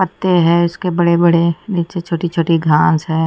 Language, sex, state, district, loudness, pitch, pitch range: Hindi, female, Odisha, Nuapada, -14 LUFS, 170 Hz, 165-175 Hz